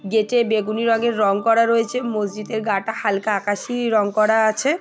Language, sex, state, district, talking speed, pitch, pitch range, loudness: Bengali, female, West Bengal, Paschim Medinipur, 175 wpm, 220 Hz, 210-230 Hz, -20 LUFS